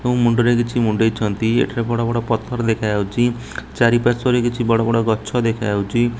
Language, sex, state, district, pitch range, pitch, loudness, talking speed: Odia, male, Odisha, Nuapada, 110-120 Hz, 115 Hz, -18 LUFS, 155 wpm